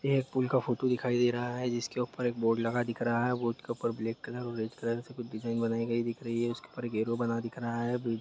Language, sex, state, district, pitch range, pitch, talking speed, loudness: Hindi, male, Jharkhand, Jamtara, 115-120 Hz, 120 Hz, 295 wpm, -32 LUFS